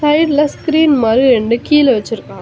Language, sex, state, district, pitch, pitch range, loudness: Tamil, female, Tamil Nadu, Chennai, 280 Hz, 235-300 Hz, -12 LUFS